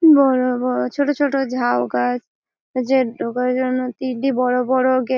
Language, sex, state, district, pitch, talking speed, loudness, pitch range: Bengali, female, West Bengal, Malda, 255 Hz, 160 wpm, -19 LUFS, 250-265 Hz